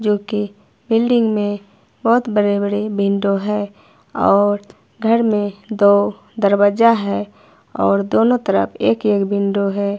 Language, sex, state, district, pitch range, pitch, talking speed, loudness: Hindi, female, Himachal Pradesh, Shimla, 200-215 Hz, 205 Hz, 130 wpm, -17 LUFS